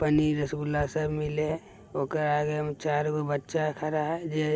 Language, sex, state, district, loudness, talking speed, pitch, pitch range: Maithili, male, Bihar, Begusarai, -29 LUFS, 195 wpm, 150 Hz, 150-155 Hz